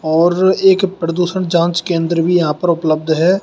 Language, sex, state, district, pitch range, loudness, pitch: Hindi, male, Uttar Pradesh, Shamli, 165-185 Hz, -14 LUFS, 170 Hz